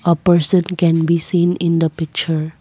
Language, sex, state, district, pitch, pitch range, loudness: English, female, Assam, Kamrup Metropolitan, 170 Hz, 165-175 Hz, -16 LUFS